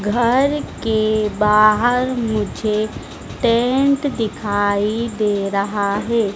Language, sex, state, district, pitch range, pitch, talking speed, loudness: Hindi, female, Madhya Pradesh, Dhar, 210-235 Hz, 215 Hz, 85 wpm, -18 LUFS